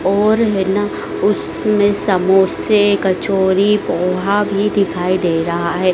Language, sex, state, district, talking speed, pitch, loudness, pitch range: Hindi, female, Madhya Pradesh, Dhar, 120 wpm, 195 Hz, -15 LUFS, 185-205 Hz